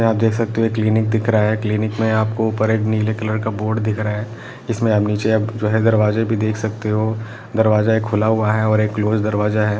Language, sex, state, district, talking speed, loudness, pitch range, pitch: Hindi, male, Jharkhand, Sahebganj, 265 wpm, -18 LUFS, 105-110 Hz, 110 Hz